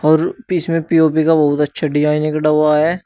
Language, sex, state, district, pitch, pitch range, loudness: Hindi, male, Uttar Pradesh, Shamli, 155 Hz, 150-165 Hz, -15 LUFS